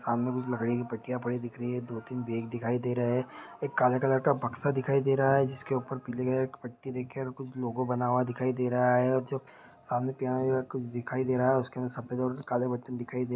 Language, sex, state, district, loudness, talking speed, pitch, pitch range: Hindi, male, Bihar, Saharsa, -30 LUFS, 255 wpm, 125 Hz, 125-130 Hz